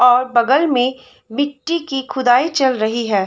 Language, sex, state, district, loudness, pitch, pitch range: Hindi, female, Bihar, Samastipur, -16 LUFS, 255 Hz, 245-280 Hz